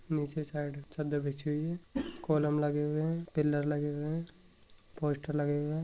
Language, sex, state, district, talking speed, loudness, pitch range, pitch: Hindi, male, Rajasthan, Nagaur, 185 wpm, -34 LUFS, 145-155 Hz, 150 Hz